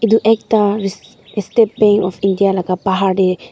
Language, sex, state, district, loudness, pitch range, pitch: Nagamese, female, Nagaland, Dimapur, -15 LUFS, 190-220 Hz, 205 Hz